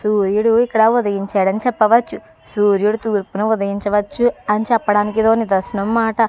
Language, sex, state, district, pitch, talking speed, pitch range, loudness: Telugu, female, Andhra Pradesh, Chittoor, 215 Hz, 115 wpm, 205-225 Hz, -16 LUFS